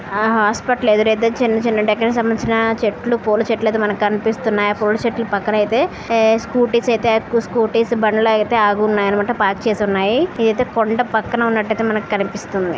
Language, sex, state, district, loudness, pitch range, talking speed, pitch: Telugu, female, Andhra Pradesh, Visakhapatnam, -17 LUFS, 210-230 Hz, 180 wpm, 220 Hz